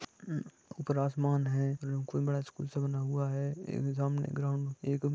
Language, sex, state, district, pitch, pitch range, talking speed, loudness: Hindi, male, Jharkhand, Sahebganj, 140 Hz, 140-145 Hz, 150 wpm, -34 LUFS